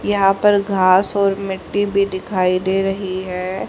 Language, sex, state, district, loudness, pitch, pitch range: Hindi, female, Haryana, Jhajjar, -17 LUFS, 195 Hz, 185-200 Hz